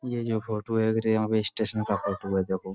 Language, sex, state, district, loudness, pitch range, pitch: Hindi, male, Uttar Pradesh, Budaun, -27 LUFS, 100-110 Hz, 110 Hz